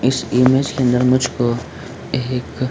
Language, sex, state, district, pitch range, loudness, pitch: Hindi, male, Jharkhand, Sahebganj, 125-130 Hz, -17 LUFS, 125 Hz